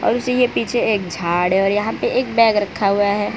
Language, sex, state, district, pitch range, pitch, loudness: Hindi, female, Gujarat, Valsad, 195-230 Hz, 205 Hz, -18 LUFS